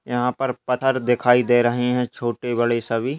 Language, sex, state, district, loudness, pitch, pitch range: Hindi, male, Chhattisgarh, Balrampur, -20 LUFS, 125 Hz, 120-125 Hz